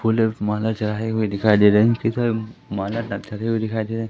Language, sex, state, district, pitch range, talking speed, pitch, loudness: Hindi, male, Madhya Pradesh, Katni, 105-115 Hz, 145 wpm, 110 Hz, -21 LUFS